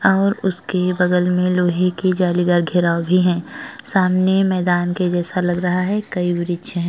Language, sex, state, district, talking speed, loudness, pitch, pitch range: Hindi, male, Uttar Pradesh, Jyotiba Phule Nagar, 175 wpm, -18 LUFS, 180 Hz, 175-185 Hz